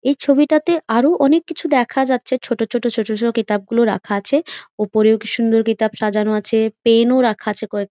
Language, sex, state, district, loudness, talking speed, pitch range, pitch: Bengali, female, West Bengal, Jhargram, -17 LUFS, 195 wpm, 215-265 Hz, 230 Hz